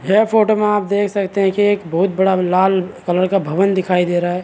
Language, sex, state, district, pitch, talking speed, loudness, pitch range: Hindi, male, Bihar, Saharsa, 190 Hz, 255 wpm, -16 LUFS, 180-205 Hz